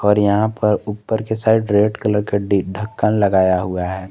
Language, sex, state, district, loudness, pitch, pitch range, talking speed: Hindi, male, Jharkhand, Garhwa, -18 LUFS, 105 Hz, 100-110 Hz, 205 wpm